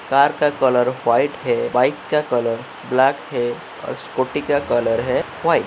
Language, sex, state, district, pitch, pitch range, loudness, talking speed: Hindi, male, Uttar Pradesh, Etah, 130 Hz, 120-145 Hz, -19 LUFS, 180 wpm